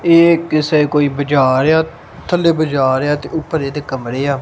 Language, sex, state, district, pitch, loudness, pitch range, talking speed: Punjabi, male, Punjab, Kapurthala, 150 Hz, -15 LUFS, 140-160 Hz, 205 wpm